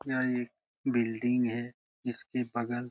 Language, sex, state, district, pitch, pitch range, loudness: Hindi, male, Bihar, Jamui, 120 Hz, 120-125 Hz, -32 LUFS